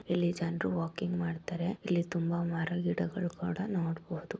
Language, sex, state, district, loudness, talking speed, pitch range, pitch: Kannada, female, Karnataka, Mysore, -34 LUFS, 125 wpm, 170-180 Hz, 175 Hz